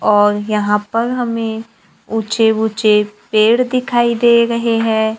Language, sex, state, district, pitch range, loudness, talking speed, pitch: Hindi, male, Maharashtra, Gondia, 215-235 Hz, -15 LUFS, 125 wpm, 225 Hz